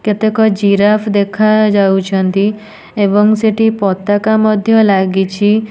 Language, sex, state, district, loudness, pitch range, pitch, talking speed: Odia, female, Odisha, Nuapada, -12 LUFS, 200-215 Hz, 210 Hz, 85 wpm